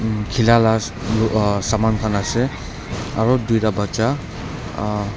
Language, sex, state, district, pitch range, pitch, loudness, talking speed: Nagamese, male, Nagaland, Dimapur, 105-115 Hz, 110 Hz, -19 LUFS, 140 wpm